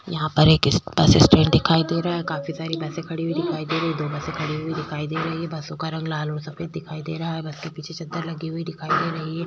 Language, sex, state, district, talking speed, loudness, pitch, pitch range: Hindi, female, Uttar Pradesh, Jyotiba Phule Nagar, 295 wpm, -22 LUFS, 160 Hz, 155-165 Hz